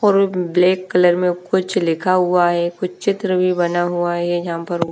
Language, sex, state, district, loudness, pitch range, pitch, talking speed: Hindi, female, Bihar, Patna, -18 LUFS, 175-185 Hz, 180 Hz, 220 wpm